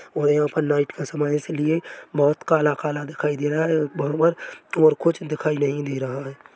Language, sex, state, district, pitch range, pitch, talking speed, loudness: Hindi, male, Chhattisgarh, Bilaspur, 145-155 Hz, 150 Hz, 220 wpm, -22 LUFS